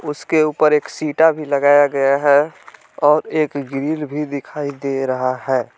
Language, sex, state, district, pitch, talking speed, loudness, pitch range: Hindi, male, Jharkhand, Palamu, 145 Hz, 155 wpm, -17 LUFS, 140-150 Hz